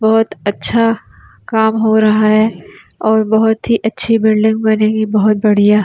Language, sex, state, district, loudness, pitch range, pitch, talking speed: Hindi, female, Delhi, New Delhi, -13 LUFS, 215-220 Hz, 220 Hz, 155 wpm